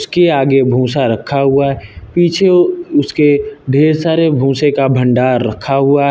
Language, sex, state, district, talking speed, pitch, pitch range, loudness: Hindi, male, Uttar Pradesh, Lucknow, 155 wpm, 140 Hz, 130-160 Hz, -12 LUFS